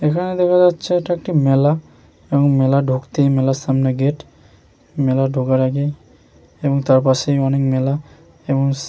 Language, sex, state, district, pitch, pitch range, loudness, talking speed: Bengali, male, West Bengal, Jhargram, 140 Hz, 135-150 Hz, -17 LUFS, 140 wpm